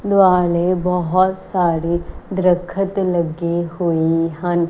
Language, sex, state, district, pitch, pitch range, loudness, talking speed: Punjabi, female, Punjab, Kapurthala, 175 Hz, 170-185 Hz, -18 LUFS, 90 wpm